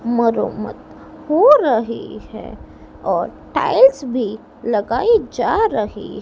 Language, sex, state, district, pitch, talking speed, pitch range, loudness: Hindi, female, Madhya Pradesh, Dhar, 240 Hz, 105 wpm, 230-315 Hz, -17 LUFS